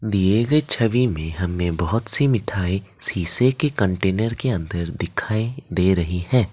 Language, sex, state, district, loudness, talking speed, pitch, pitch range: Hindi, male, Assam, Kamrup Metropolitan, -20 LUFS, 155 wpm, 100 Hz, 90-120 Hz